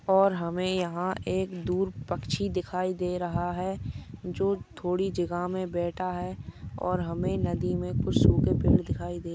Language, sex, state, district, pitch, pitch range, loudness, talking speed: Hindi, female, Maharashtra, Solapur, 180 Hz, 175-185 Hz, -29 LUFS, 175 wpm